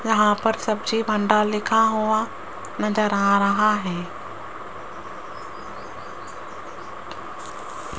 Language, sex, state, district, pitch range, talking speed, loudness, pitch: Hindi, female, Rajasthan, Jaipur, 205-220 Hz, 75 wpm, -21 LUFS, 215 Hz